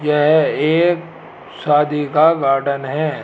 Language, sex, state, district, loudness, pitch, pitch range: Hindi, male, Rajasthan, Jaipur, -16 LUFS, 150 Hz, 145-160 Hz